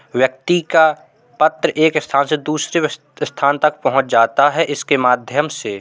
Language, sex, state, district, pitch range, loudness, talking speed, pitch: Hindi, male, Uttar Pradesh, Hamirpur, 140-155 Hz, -16 LUFS, 165 wpm, 150 Hz